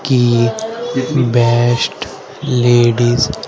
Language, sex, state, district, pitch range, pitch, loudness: Hindi, male, Haryana, Rohtak, 120-145 Hz, 120 Hz, -14 LUFS